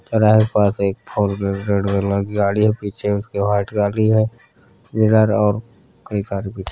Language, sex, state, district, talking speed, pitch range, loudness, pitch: Hindi, male, Uttar Pradesh, Varanasi, 145 wpm, 100-110 Hz, -18 LUFS, 105 Hz